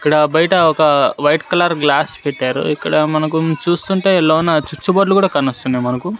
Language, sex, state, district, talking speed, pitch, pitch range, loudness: Telugu, male, Andhra Pradesh, Sri Satya Sai, 155 wpm, 155 Hz, 150-175 Hz, -15 LUFS